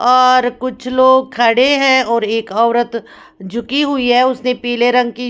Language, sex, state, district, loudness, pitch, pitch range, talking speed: Hindi, female, Bihar, Patna, -13 LUFS, 250 Hz, 235-255 Hz, 170 wpm